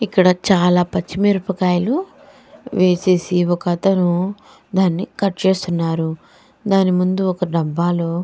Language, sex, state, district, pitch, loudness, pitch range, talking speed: Telugu, female, Andhra Pradesh, Chittoor, 185 Hz, -18 LUFS, 175-195 Hz, 95 wpm